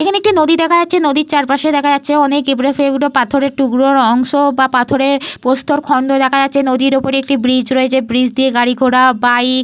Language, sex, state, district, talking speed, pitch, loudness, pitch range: Bengali, female, Jharkhand, Jamtara, 180 wpm, 275 Hz, -12 LUFS, 255-285 Hz